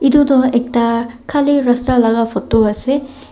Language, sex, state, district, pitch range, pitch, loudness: Nagamese, male, Nagaland, Dimapur, 230-275 Hz, 245 Hz, -14 LUFS